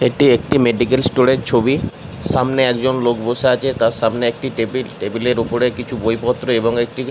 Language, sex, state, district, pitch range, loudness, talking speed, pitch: Bengali, male, West Bengal, Jalpaiguri, 115-130 Hz, -17 LUFS, 210 wpm, 125 Hz